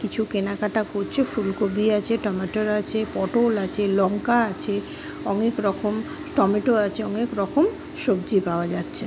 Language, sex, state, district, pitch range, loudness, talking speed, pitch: Bengali, female, West Bengal, Malda, 200-230 Hz, -23 LUFS, 130 wpm, 210 Hz